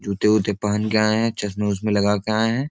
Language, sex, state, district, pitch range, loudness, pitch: Hindi, male, Bihar, Supaul, 105-110 Hz, -21 LUFS, 105 Hz